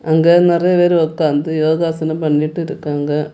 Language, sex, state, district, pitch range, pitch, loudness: Tamil, female, Tamil Nadu, Kanyakumari, 150-170 Hz, 160 Hz, -15 LUFS